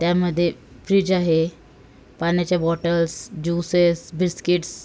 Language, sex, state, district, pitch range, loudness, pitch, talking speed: Marathi, female, Maharashtra, Sindhudurg, 170-180 Hz, -21 LUFS, 170 Hz, 100 wpm